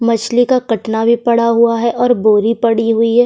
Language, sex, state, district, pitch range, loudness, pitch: Hindi, female, Uttar Pradesh, Jyotiba Phule Nagar, 225-240 Hz, -13 LUFS, 230 Hz